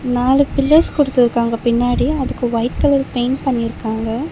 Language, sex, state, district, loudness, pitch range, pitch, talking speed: Tamil, female, Tamil Nadu, Chennai, -16 LUFS, 235-275 Hz, 250 Hz, 125 wpm